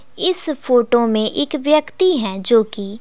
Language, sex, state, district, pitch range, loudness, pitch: Hindi, female, Bihar, West Champaran, 220-305 Hz, -16 LUFS, 245 Hz